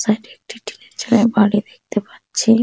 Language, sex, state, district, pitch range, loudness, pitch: Bengali, female, West Bengal, Purulia, 210-230 Hz, -18 LUFS, 225 Hz